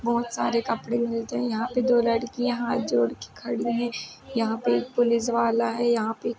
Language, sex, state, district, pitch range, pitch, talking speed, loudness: Hindi, female, Uttar Pradesh, Jalaun, 230-240 Hz, 235 Hz, 215 wpm, -25 LUFS